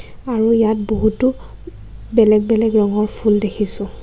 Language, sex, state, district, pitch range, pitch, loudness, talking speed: Assamese, female, Assam, Kamrup Metropolitan, 210-225 Hz, 220 Hz, -16 LUFS, 120 wpm